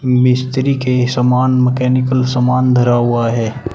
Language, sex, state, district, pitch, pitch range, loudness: Hindi, male, Uttar Pradesh, Shamli, 125 Hz, 125-130 Hz, -14 LUFS